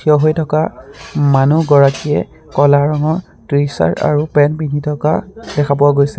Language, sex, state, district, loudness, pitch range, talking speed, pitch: Assamese, male, Assam, Sonitpur, -14 LUFS, 145-155 Hz, 145 wpm, 150 Hz